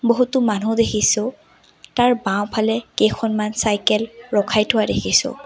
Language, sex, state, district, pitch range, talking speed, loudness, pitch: Assamese, female, Assam, Sonitpur, 210-235 Hz, 110 wpm, -19 LUFS, 220 Hz